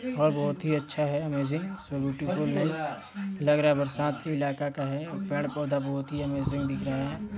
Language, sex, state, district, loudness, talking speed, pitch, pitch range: Hindi, male, Chhattisgarh, Sarguja, -29 LUFS, 210 wpm, 145 Hz, 140-150 Hz